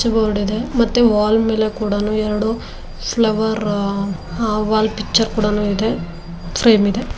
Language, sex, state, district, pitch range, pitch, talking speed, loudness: Kannada, female, Karnataka, Dharwad, 205-225 Hz, 215 Hz, 140 wpm, -18 LUFS